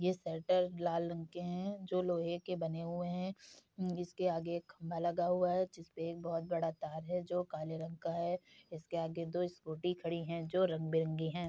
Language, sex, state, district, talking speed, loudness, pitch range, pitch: Hindi, female, Uttar Pradesh, Budaun, 205 wpm, -38 LUFS, 165-180 Hz, 170 Hz